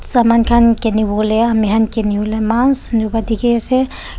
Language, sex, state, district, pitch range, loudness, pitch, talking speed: Nagamese, female, Nagaland, Dimapur, 220-235 Hz, -14 LUFS, 225 Hz, 145 wpm